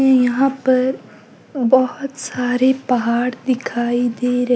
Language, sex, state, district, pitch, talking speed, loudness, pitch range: Hindi, male, Himachal Pradesh, Shimla, 255 Hz, 105 wpm, -18 LUFS, 245-260 Hz